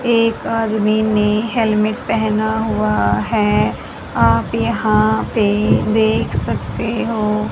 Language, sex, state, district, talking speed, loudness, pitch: Hindi, female, Haryana, Charkhi Dadri, 105 wpm, -17 LUFS, 210 Hz